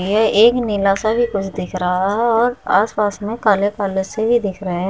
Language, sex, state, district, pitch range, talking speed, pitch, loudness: Hindi, female, Uttar Pradesh, Muzaffarnagar, 195-225 Hz, 245 wpm, 205 Hz, -17 LUFS